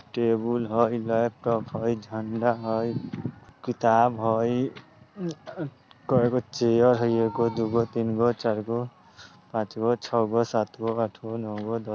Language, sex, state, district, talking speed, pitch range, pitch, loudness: Bajjika, male, Bihar, Vaishali, 145 wpm, 115-120 Hz, 115 Hz, -26 LUFS